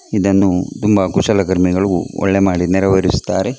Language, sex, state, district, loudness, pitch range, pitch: Kannada, male, Karnataka, Dakshina Kannada, -15 LUFS, 90-100 Hz, 95 Hz